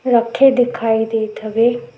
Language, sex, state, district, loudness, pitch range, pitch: Chhattisgarhi, female, Chhattisgarh, Sukma, -16 LUFS, 225-245 Hz, 235 Hz